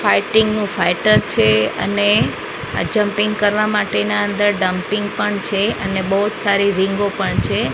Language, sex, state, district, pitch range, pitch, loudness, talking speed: Gujarati, female, Maharashtra, Mumbai Suburban, 190-210 Hz, 205 Hz, -17 LUFS, 155 wpm